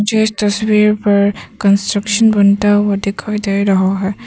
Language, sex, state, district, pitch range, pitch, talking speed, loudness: Hindi, female, Arunachal Pradesh, Papum Pare, 200-210 Hz, 205 Hz, 155 wpm, -14 LUFS